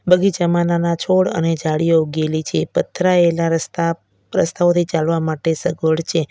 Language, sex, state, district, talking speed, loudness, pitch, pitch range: Gujarati, female, Gujarat, Valsad, 135 wpm, -18 LUFS, 165 Hz, 160-175 Hz